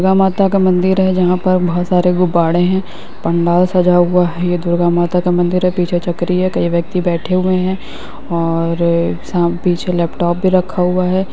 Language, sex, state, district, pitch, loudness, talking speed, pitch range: Hindi, female, Uttar Pradesh, Budaun, 180 Hz, -14 LUFS, 190 wpm, 175-185 Hz